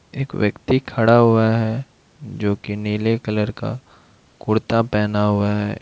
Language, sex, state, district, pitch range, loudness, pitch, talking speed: Hindi, male, Bihar, Purnia, 105-115 Hz, -19 LUFS, 110 Hz, 145 wpm